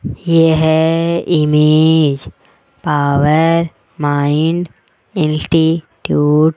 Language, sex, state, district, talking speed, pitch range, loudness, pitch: Hindi, female, Rajasthan, Jaipur, 55 wpm, 145-165 Hz, -13 LUFS, 155 Hz